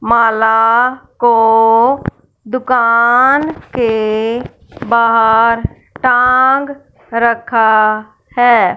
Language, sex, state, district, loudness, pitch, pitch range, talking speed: Hindi, female, Punjab, Fazilka, -12 LUFS, 235 Hz, 225-250 Hz, 55 wpm